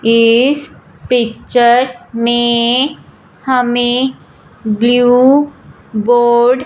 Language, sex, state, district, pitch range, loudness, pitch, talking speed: Hindi, female, Punjab, Fazilka, 235-255 Hz, -12 LUFS, 245 Hz, 65 wpm